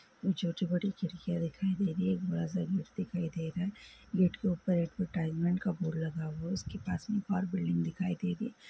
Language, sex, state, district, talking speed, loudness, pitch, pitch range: Hindi, female, Karnataka, Belgaum, 235 wpm, -34 LUFS, 180 Hz, 170-190 Hz